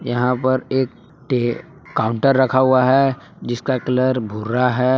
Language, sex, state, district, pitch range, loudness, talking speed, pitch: Hindi, male, Jharkhand, Palamu, 120-130 Hz, -18 LUFS, 145 wpm, 130 Hz